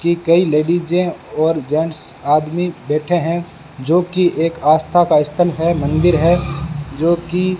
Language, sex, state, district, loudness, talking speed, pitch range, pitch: Hindi, male, Rajasthan, Bikaner, -16 LUFS, 160 wpm, 155-175 Hz, 165 Hz